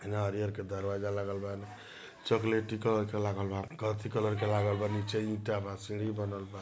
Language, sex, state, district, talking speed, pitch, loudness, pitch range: Bhojpuri, male, Bihar, Gopalganj, 210 wpm, 105 Hz, -34 LUFS, 100-110 Hz